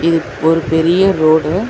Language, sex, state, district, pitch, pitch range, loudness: Tamil, female, Tamil Nadu, Chennai, 160 Hz, 160-170 Hz, -13 LUFS